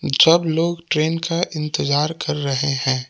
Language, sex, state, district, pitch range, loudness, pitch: Hindi, male, Jharkhand, Palamu, 140-165 Hz, -19 LUFS, 155 Hz